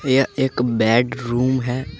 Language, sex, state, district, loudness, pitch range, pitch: Hindi, male, Jharkhand, Deoghar, -19 LUFS, 120-130 Hz, 125 Hz